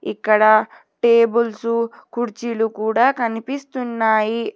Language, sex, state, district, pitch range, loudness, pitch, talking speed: Telugu, female, Telangana, Hyderabad, 220-240 Hz, -18 LUFS, 230 Hz, 65 wpm